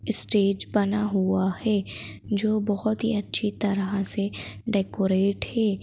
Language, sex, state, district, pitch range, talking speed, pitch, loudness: Hindi, female, Madhya Pradesh, Bhopal, 195-210 Hz, 125 wpm, 205 Hz, -23 LUFS